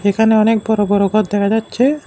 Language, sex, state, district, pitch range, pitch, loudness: Bengali, male, Tripura, West Tripura, 205-225 Hz, 215 Hz, -15 LUFS